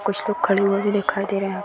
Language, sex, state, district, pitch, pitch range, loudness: Hindi, female, Bihar, Gaya, 195 Hz, 195-200 Hz, -21 LUFS